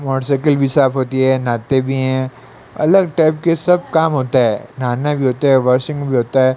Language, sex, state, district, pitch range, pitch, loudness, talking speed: Hindi, male, Rajasthan, Bikaner, 130-150 Hz, 135 Hz, -15 LUFS, 210 wpm